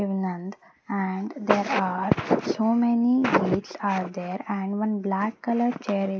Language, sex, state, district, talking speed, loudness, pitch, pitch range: English, female, Maharashtra, Mumbai Suburban, 155 wpm, -25 LUFS, 200 Hz, 190-225 Hz